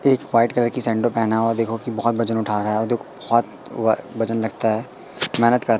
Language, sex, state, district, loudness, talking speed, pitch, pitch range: Hindi, male, Madhya Pradesh, Katni, -20 LUFS, 250 wpm, 115 Hz, 110-120 Hz